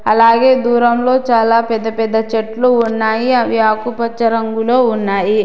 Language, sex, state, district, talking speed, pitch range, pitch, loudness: Telugu, female, Telangana, Hyderabad, 120 wpm, 225-240 Hz, 230 Hz, -13 LUFS